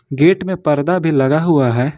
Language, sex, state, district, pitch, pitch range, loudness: Hindi, male, Jharkhand, Ranchi, 150 Hz, 140-170 Hz, -15 LUFS